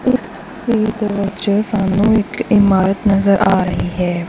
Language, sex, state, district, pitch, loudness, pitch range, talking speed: Punjabi, female, Punjab, Kapurthala, 200 Hz, -15 LUFS, 190-215 Hz, 155 wpm